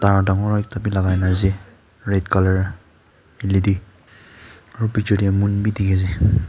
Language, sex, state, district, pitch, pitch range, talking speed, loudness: Nagamese, male, Nagaland, Kohima, 100 Hz, 95-105 Hz, 165 wpm, -20 LUFS